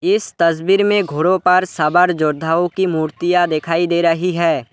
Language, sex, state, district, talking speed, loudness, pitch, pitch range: Hindi, male, West Bengal, Alipurduar, 165 wpm, -16 LUFS, 175 Hz, 165-185 Hz